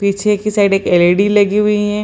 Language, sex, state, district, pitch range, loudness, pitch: Hindi, female, Bihar, Samastipur, 200-210 Hz, -13 LUFS, 205 Hz